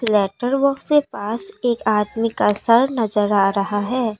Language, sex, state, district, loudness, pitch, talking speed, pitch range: Hindi, female, Assam, Kamrup Metropolitan, -19 LUFS, 220 Hz, 170 wpm, 205-245 Hz